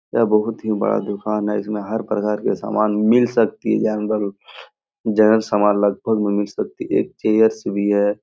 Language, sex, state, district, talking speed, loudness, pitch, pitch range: Hindi, male, Bihar, Jahanabad, 180 wpm, -19 LUFS, 105 Hz, 105-110 Hz